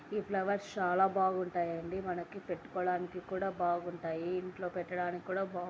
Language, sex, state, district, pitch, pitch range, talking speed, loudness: Telugu, female, Andhra Pradesh, Anantapur, 180 Hz, 175-190 Hz, 145 wpm, -36 LUFS